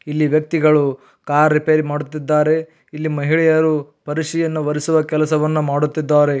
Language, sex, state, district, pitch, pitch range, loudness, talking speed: Kannada, male, Karnataka, Belgaum, 155 Hz, 150-155 Hz, -17 LUFS, 105 wpm